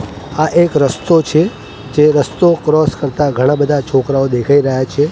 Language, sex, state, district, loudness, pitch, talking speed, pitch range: Gujarati, male, Gujarat, Gandhinagar, -13 LUFS, 145 Hz, 165 wpm, 135-155 Hz